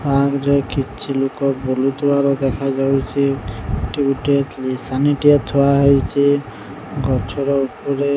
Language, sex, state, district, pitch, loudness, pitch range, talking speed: Odia, male, Odisha, Sambalpur, 140 Hz, -18 LUFS, 130-140 Hz, 125 wpm